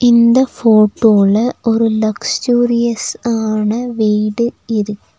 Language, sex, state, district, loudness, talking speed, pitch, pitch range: Tamil, female, Tamil Nadu, Nilgiris, -14 LUFS, 80 wpm, 225 Hz, 215-235 Hz